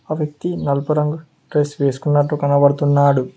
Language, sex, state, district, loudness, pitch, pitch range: Telugu, male, Telangana, Mahabubabad, -18 LUFS, 145 Hz, 140-150 Hz